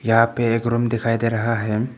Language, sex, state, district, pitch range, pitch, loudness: Hindi, male, Arunachal Pradesh, Papum Pare, 115-120 Hz, 115 Hz, -20 LUFS